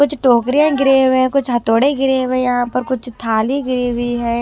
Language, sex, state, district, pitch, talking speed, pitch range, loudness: Hindi, female, Chhattisgarh, Raipur, 255 Hz, 230 wpm, 240-270 Hz, -15 LUFS